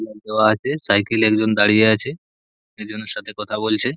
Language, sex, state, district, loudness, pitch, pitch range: Bengali, male, West Bengal, Purulia, -18 LUFS, 110 Hz, 105-110 Hz